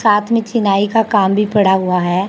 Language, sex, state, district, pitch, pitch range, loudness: Hindi, female, Haryana, Charkhi Dadri, 205 Hz, 190-220 Hz, -14 LUFS